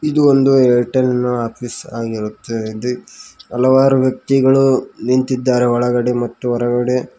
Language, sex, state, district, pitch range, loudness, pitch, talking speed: Kannada, male, Karnataka, Koppal, 120-135 Hz, -15 LUFS, 125 Hz, 100 wpm